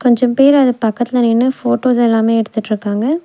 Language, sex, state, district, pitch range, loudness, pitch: Tamil, female, Tamil Nadu, Nilgiris, 225-250 Hz, -13 LUFS, 240 Hz